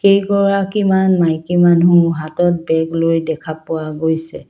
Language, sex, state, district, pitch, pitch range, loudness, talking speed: Assamese, female, Assam, Kamrup Metropolitan, 170 Hz, 160-190 Hz, -15 LUFS, 105 wpm